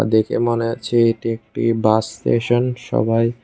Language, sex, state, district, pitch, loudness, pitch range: Bengali, male, Tripura, West Tripura, 115 Hz, -19 LUFS, 110-120 Hz